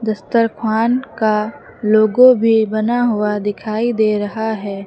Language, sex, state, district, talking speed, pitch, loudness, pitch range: Hindi, female, Uttar Pradesh, Lucknow, 125 wpm, 220 Hz, -16 LUFS, 210-230 Hz